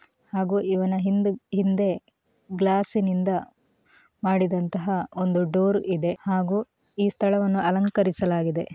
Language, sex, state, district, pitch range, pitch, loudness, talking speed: Kannada, female, Karnataka, Mysore, 185-200 Hz, 190 Hz, -24 LUFS, 95 wpm